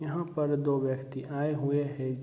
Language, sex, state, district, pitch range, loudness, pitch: Hindi, male, Bihar, Saharsa, 135-150 Hz, -31 LUFS, 145 Hz